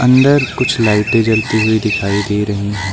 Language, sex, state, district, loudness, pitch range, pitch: Hindi, male, Uttar Pradesh, Lucknow, -14 LUFS, 105-125 Hz, 110 Hz